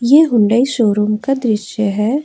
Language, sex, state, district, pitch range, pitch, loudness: Hindi, female, Jharkhand, Ranchi, 210-270 Hz, 225 Hz, -14 LUFS